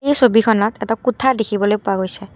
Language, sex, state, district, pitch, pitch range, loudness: Assamese, female, Assam, Kamrup Metropolitan, 225 Hz, 205-250 Hz, -17 LUFS